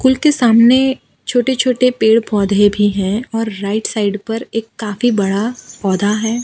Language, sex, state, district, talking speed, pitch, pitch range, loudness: Hindi, female, Gujarat, Valsad, 170 wpm, 225 Hz, 205-245 Hz, -15 LUFS